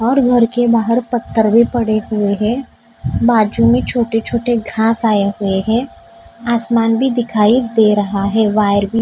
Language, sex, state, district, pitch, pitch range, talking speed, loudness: Hindi, female, Maharashtra, Mumbai Suburban, 225 Hz, 210-235 Hz, 165 wpm, -14 LUFS